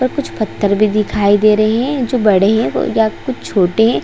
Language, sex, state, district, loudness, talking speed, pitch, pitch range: Hindi, female, Chhattisgarh, Raigarh, -14 LUFS, 225 wpm, 215 Hz, 210-240 Hz